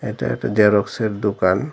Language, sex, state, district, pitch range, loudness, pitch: Bengali, male, Tripura, Dhalai, 90-105 Hz, -19 LUFS, 105 Hz